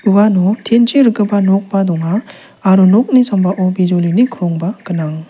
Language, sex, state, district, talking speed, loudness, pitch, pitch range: Garo, male, Meghalaya, South Garo Hills, 135 wpm, -13 LUFS, 195 Hz, 185-220 Hz